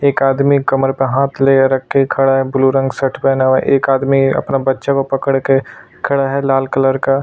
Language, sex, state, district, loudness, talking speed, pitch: Hindi, male, Maharashtra, Aurangabad, -14 LUFS, 230 wpm, 135 Hz